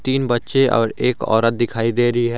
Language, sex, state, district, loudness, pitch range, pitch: Hindi, male, Jharkhand, Garhwa, -18 LUFS, 115-125 Hz, 120 Hz